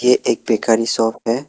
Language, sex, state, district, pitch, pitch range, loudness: Hindi, male, Assam, Kamrup Metropolitan, 115 Hz, 115-120 Hz, -17 LUFS